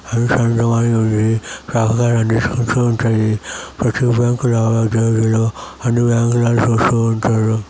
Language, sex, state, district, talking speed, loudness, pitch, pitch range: Telugu, male, Andhra Pradesh, Chittoor, 115 wpm, -16 LUFS, 115 Hz, 110-120 Hz